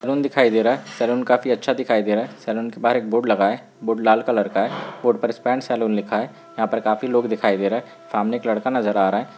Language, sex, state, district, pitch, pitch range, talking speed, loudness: Hindi, male, Uttarakhand, Uttarkashi, 115 Hz, 110-125 Hz, 305 wpm, -21 LUFS